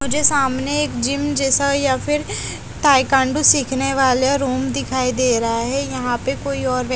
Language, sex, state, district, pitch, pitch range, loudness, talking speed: Hindi, female, Haryana, Charkhi Dadri, 270 Hz, 255-280 Hz, -18 LUFS, 170 wpm